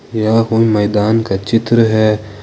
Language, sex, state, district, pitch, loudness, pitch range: Hindi, male, Jharkhand, Ranchi, 110 Hz, -13 LUFS, 105-115 Hz